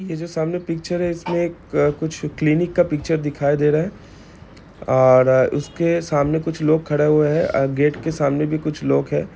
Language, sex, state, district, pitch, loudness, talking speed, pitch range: Hindi, male, Bihar, Gopalganj, 155 Hz, -19 LUFS, 190 wpm, 145-165 Hz